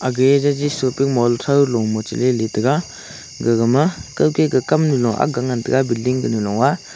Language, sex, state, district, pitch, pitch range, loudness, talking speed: Wancho, male, Arunachal Pradesh, Longding, 130 Hz, 120-140 Hz, -18 LUFS, 155 wpm